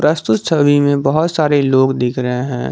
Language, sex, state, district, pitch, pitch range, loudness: Hindi, male, Jharkhand, Garhwa, 140 Hz, 125-150 Hz, -14 LUFS